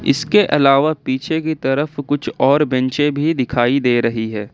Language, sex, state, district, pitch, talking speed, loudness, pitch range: Hindi, male, Jharkhand, Ranchi, 140 Hz, 170 wpm, -16 LUFS, 130-150 Hz